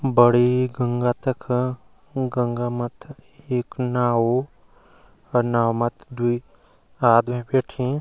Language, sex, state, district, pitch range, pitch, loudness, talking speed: Garhwali, male, Uttarakhand, Uttarkashi, 120-130 Hz, 125 Hz, -22 LUFS, 95 wpm